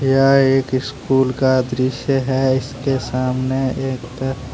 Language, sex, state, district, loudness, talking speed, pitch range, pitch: Hindi, male, Jharkhand, Deoghar, -18 LUFS, 130 wpm, 130-135 Hz, 130 Hz